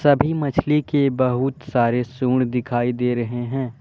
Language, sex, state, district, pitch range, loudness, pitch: Hindi, male, Jharkhand, Deoghar, 120-140 Hz, -21 LUFS, 130 Hz